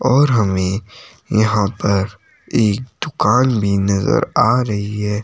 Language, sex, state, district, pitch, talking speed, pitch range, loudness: Hindi, male, Himachal Pradesh, Shimla, 105 Hz, 125 wpm, 100-125 Hz, -17 LUFS